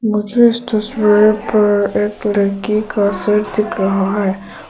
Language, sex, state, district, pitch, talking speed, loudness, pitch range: Hindi, female, Arunachal Pradesh, Papum Pare, 210 Hz, 140 wpm, -15 LUFS, 200-215 Hz